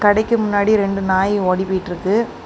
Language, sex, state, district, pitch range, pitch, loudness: Tamil, female, Tamil Nadu, Kanyakumari, 190-210 Hz, 200 Hz, -17 LUFS